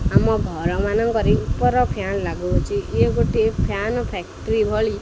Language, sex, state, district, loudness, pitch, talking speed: Odia, male, Odisha, Khordha, -21 LUFS, 220 Hz, 145 wpm